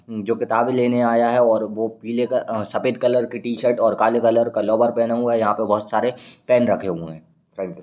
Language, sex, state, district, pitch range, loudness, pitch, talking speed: Hindi, male, Uttar Pradesh, Ghazipur, 110-120 Hz, -20 LUFS, 115 Hz, 220 wpm